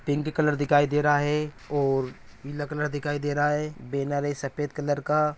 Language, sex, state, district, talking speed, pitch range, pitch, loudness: Hindi, male, Bihar, Araria, 200 wpm, 145-150 Hz, 145 Hz, -26 LUFS